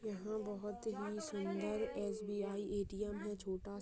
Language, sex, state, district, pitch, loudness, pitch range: Hindi, female, Bihar, Purnia, 205 Hz, -43 LUFS, 200-210 Hz